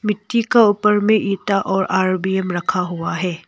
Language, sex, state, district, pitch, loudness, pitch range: Hindi, female, Arunachal Pradesh, Longding, 195 Hz, -18 LUFS, 185-210 Hz